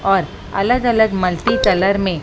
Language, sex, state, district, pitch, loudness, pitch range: Hindi, female, Maharashtra, Mumbai Suburban, 195 Hz, -16 LUFS, 180-220 Hz